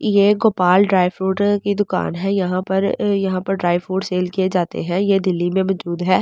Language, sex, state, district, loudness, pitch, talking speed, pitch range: Hindi, female, Delhi, New Delhi, -18 LUFS, 190 Hz, 210 wpm, 180-200 Hz